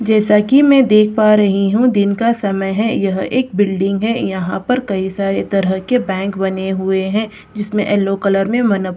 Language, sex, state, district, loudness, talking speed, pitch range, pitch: Hindi, female, Bihar, Katihar, -15 LUFS, 205 wpm, 195-220 Hz, 200 Hz